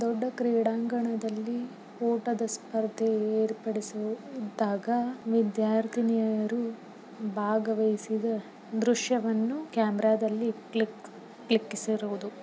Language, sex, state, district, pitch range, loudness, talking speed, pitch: Kannada, female, Karnataka, Belgaum, 220-235 Hz, -29 LUFS, 55 wpm, 225 Hz